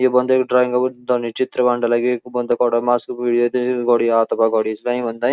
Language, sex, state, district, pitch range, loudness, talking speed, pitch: Garhwali, male, Uttarakhand, Uttarkashi, 120-125 Hz, -18 LUFS, 80 wpm, 120 Hz